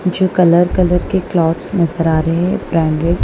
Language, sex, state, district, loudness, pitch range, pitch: Hindi, female, Punjab, Kapurthala, -14 LUFS, 165-180 Hz, 175 Hz